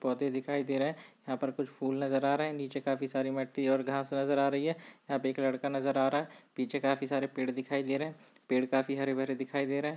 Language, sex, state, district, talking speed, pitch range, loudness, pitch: Hindi, male, Chhattisgarh, Bilaspur, 285 wpm, 135-140 Hz, -33 LUFS, 135 Hz